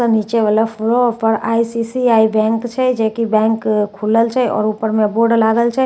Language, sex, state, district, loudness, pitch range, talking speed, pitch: Maithili, female, Bihar, Katihar, -15 LUFS, 220-235 Hz, 185 wpm, 225 Hz